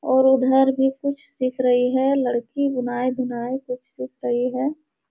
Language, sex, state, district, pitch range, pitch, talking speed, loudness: Hindi, female, Uttar Pradesh, Jalaun, 250-270 Hz, 255 Hz, 155 wpm, -21 LUFS